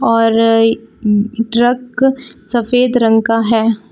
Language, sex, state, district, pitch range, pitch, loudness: Hindi, female, Jharkhand, Palamu, 225-245 Hz, 230 Hz, -13 LUFS